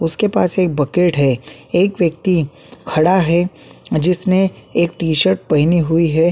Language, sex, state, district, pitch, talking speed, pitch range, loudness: Hindi, male, Uttarakhand, Tehri Garhwal, 170 Hz, 150 wpm, 155-185 Hz, -16 LUFS